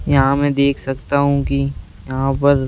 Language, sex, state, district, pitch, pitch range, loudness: Hindi, male, Madhya Pradesh, Bhopal, 140 Hz, 135-140 Hz, -18 LUFS